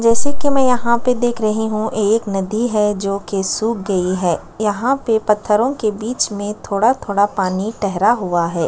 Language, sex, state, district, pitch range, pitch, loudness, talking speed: Hindi, female, Chhattisgarh, Sukma, 200-230 Hz, 210 Hz, -18 LUFS, 180 wpm